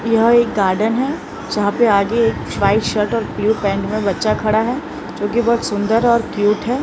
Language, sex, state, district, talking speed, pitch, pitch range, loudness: Hindi, male, Maharashtra, Mumbai Suburban, 210 wpm, 220 Hz, 205-235 Hz, -17 LUFS